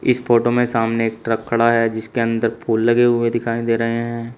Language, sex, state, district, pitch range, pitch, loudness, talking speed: Hindi, male, Uttar Pradesh, Shamli, 115-120 Hz, 115 Hz, -18 LUFS, 235 wpm